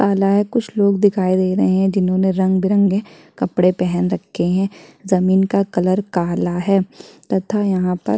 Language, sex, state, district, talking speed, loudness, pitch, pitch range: Hindi, female, Chhattisgarh, Kabirdham, 155 wpm, -17 LUFS, 190 Hz, 185-200 Hz